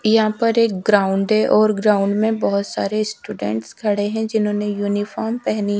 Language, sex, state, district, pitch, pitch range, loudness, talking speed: Hindi, female, Haryana, Charkhi Dadri, 210 Hz, 205-220 Hz, -19 LUFS, 175 wpm